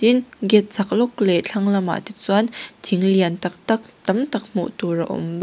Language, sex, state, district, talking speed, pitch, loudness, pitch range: Mizo, female, Mizoram, Aizawl, 210 wpm, 200 Hz, -20 LUFS, 190-225 Hz